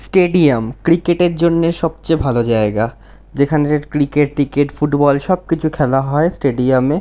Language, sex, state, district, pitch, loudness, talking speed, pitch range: Bengali, male, West Bengal, North 24 Parganas, 145 Hz, -15 LUFS, 145 wpm, 135-165 Hz